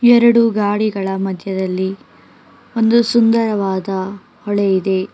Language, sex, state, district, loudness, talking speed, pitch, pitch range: Kannada, female, Karnataka, Bangalore, -16 LUFS, 95 wpm, 205 Hz, 190-230 Hz